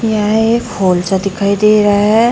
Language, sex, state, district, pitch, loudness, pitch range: Hindi, female, Uttar Pradesh, Saharanpur, 210 Hz, -12 LUFS, 195-220 Hz